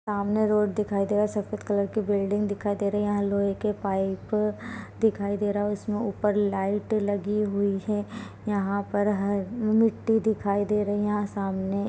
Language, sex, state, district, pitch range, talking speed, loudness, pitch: Hindi, female, Chhattisgarh, Balrampur, 200-210 Hz, 190 wpm, -26 LUFS, 205 Hz